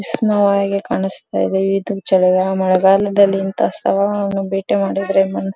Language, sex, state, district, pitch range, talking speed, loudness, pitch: Kannada, female, Karnataka, Dharwad, 190-200 Hz, 130 wpm, -16 LUFS, 195 Hz